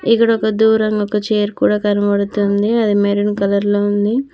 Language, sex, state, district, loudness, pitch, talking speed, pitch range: Telugu, female, Telangana, Mahabubabad, -15 LUFS, 210 Hz, 165 wpm, 205-220 Hz